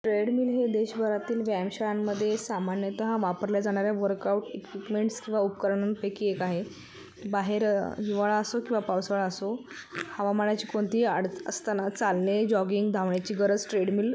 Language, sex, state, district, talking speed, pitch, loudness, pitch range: Marathi, female, Maharashtra, Sindhudurg, 135 wpm, 205 Hz, -28 LUFS, 200-215 Hz